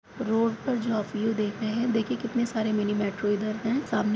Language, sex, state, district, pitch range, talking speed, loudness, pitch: Hindi, female, Uttar Pradesh, Muzaffarnagar, 215-230 Hz, 245 wpm, -28 LUFS, 220 Hz